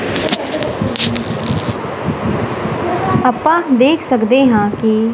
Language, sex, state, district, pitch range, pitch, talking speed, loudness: Punjabi, female, Punjab, Kapurthala, 220-270 Hz, 255 Hz, 60 wpm, -15 LUFS